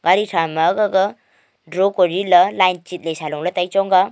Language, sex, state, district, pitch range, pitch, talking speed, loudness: Wancho, female, Arunachal Pradesh, Longding, 165-195 Hz, 180 Hz, 220 wpm, -17 LUFS